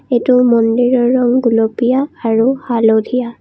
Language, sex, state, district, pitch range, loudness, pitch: Assamese, female, Assam, Kamrup Metropolitan, 230-250 Hz, -13 LUFS, 245 Hz